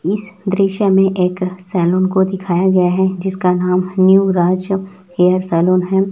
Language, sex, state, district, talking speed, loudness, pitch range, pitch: Hindi, male, Chhattisgarh, Raipur, 175 wpm, -15 LUFS, 180-190 Hz, 185 Hz